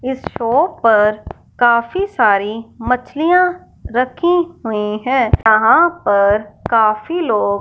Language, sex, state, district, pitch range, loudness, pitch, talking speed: Hindi, male, Punjab, Fazilka, 215-330 Hz, -15 LUFS, 240 Hz, 100 wpm